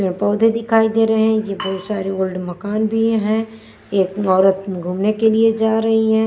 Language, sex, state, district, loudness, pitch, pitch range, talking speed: Hindi, female, Maharashtra, Washim, -17 LUFS, 215 Hz, 195-220 Hz, 200 wpm